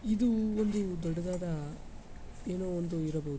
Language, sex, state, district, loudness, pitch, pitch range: Kannada, male, Karnataka, Mysore, -33 LUFS, 180 Hz, 165-215 Hz